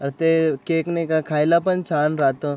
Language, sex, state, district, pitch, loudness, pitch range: Marathi, male, Maharashtra, Aurangabad, 160 Hz, -20 LUFS, 150-165 Hz